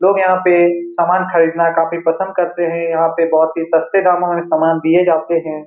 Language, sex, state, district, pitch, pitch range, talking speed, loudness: Hindi, male, Bihar, Supaul, 170 Hz, 165-180 Hz, 210 wpm, -14 LUFS